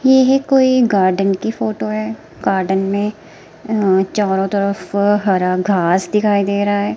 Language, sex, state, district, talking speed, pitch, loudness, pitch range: Hindi, female, Himachal Pradesh, Shimla, 145 wpm, 200 Hz, -16 LUFS, 190-215 Hz